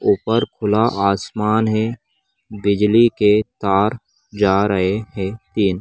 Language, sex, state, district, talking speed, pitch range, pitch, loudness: Magahi, male, Bihar, Gaya, 125 wpm, 100-110 Hz, 105 Hz, -18 LUFS